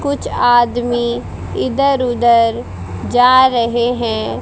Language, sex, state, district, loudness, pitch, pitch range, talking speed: Hindi, female, Haryana, Charkhi Dadri, -14 LUFS, 240 Hz, 230-250 Hz, 95 wpm